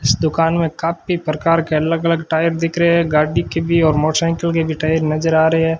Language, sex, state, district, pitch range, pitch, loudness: Hindi, male, Rajasthan, Bikaner, 155-165 Hz, 165 Hz, -16 LUFS